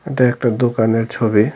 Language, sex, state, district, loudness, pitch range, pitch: Bengali, male, Tripura, Dhalai, -17 LUFS, 115-125 Hz, 120 Hz